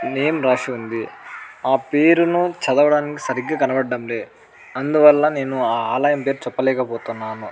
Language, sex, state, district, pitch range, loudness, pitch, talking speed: Telugu, male, Andhra Pradesh, Anantapur, 125-150 Hz, -19 LUFS, 135 Hz, 110 wpm